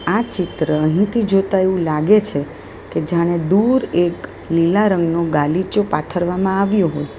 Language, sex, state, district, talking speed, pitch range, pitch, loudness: Gujarati, female, Gujarat, Valsad, 140 wpm, 165-200 Hz, 180 Hz, -17 LUFS